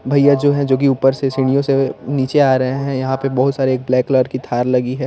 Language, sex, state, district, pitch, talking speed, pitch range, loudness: Hindi, male, Chandigarh, Chandigarh, 135 Hz, 295 wpm, 130-140 Hz, -16 LUFS